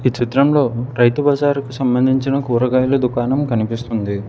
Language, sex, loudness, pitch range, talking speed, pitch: Telugu, male, -17 LUFS, 120-135 Hz, 110 wpm, 130 Hz